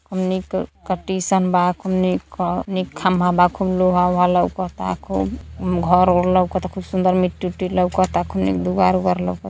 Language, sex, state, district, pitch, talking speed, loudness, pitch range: Hindi, female, Uttar Pradesh, Gorakhpur, 180 Hz, 185 wpm, -19 LUFS, 175-185 Hz